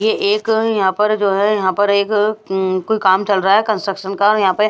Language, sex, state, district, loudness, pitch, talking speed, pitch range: Hindi, female, Odisha, Nuapada, -16 LUFS, 205 Hz, 230 wpm, 195-215 Hz